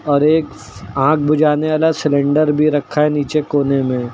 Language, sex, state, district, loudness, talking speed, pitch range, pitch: Hindi, male, Uttar Pradesh, Lucknow, -15 LUFS, 175 wpm, 140-155 Hz, 145 Hz